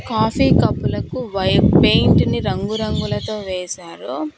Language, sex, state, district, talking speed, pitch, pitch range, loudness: Telugu, female, Telangana, Hyderabad, 95 wpm, 205 Hz, 180-220 Hz, -17 LUFS